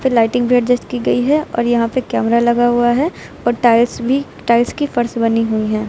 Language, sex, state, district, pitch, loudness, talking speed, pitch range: Hindi, female, Uttar Pradesh, Lucknow, 240 Hz, -15 LUFS, 225 wpm, 235-250 Hz